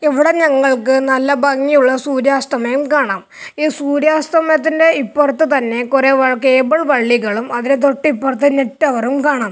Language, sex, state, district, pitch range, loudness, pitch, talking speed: Malayalam, male, Kerala, Kasaragod, 260-295 Hz, -14 LUFS, 275 Hz, 120 wpm